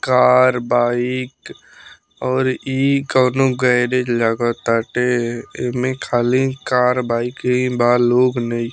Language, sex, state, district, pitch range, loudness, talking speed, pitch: Bhojpuri, male, Bihar, Muzaffarpur, 120-130 Hz, -17 LUFS, 110 wpm, 125 Hz